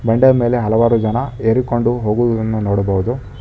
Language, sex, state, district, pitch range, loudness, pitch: Kannada, male, Karnataka, Bangalore, 110-120 Hz, -16 LUFS, 115 Hz